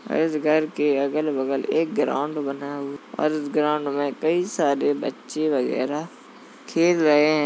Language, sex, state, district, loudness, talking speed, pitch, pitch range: Hindi, male, Uttar Pradesh, Jalaun, -23 LUFS, 155 wpm, 150 Hz, 145-155 Hz